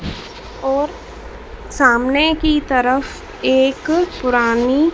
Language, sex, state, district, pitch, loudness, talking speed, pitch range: Hindi, female, Madhya Pradesh, Dhar, 280 Hz, -16 LUFS, 75 wpm, 255-330 Hz